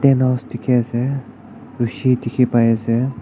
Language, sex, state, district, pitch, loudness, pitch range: Nagamese, male, Nagaland, Kohima, 125 Hz, -18 LUFS, 120-130 Hz